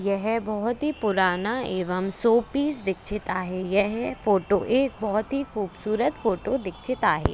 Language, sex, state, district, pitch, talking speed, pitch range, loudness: Hindi, female, Maharashtra, Pune, 210 Hz, 145 wpm, 190-240 Hz, -25 LUFS